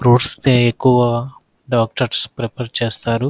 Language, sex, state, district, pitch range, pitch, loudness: Telugu, male, Andhra Pradesh, Krishna, 115-130 Hz, 120 Hz, -17 LUFS